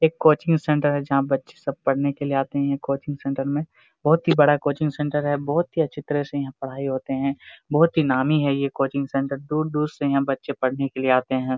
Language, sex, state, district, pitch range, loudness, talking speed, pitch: Hindi, male, Bihar, Jamui, 135-150 Hz, -23 LUFS, 245 wpm, 140 Hz